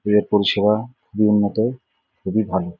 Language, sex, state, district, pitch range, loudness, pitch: Bengali, male, West Bengal, Jhargram, 100-110 Hz, -19 LUFS, 105 Hz